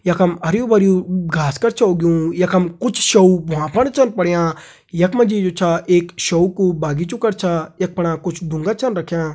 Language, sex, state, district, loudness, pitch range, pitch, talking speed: Hindi, male, Uttarakhand, Uttarkashi, -17 LUFS, 165-200 Hz, 180 Hz, 175 wpm